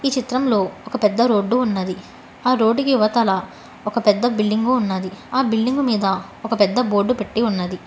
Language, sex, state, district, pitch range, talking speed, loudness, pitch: Telugu, female, Telangana, Hyderabad, 205-250 Hz, 160 wpm, -19 LUFS, 225 Hz